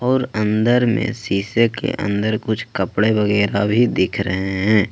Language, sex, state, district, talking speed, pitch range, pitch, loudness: Hindi, male, Jharkhand, Ranchi, 160 wpm, 100-115 Hz, 105 Hz, -18 LUFS